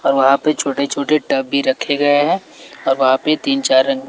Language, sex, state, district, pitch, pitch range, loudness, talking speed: Hindi, male, Bihar, West Champaran, 135 Hz, 135-145 Hz, -16 LUFS, 235 wpm